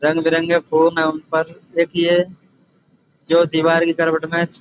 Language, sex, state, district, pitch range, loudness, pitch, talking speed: Hindi, male, Uttar Pradesh, Budaun, 160-170 Hz, -17 LUFS, 165 Hz, 130 wpm